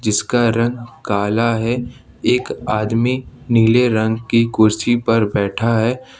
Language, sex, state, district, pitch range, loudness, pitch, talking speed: Hindi, male, Jharkhand, Ranchi, 110-120 Hz, -17 LUFS, 115 Hz, 125 wpm